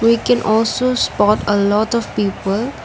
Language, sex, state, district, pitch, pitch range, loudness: English, female, Assam, Kamrup Metropolitan, 220 Hz, 205-235 Hz, -16 LUFS